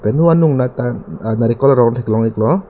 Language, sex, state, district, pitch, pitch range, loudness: Karbi, male, Assam, Karbi Anglong, 120 Hz, 115-140 Hz, -15 LUFS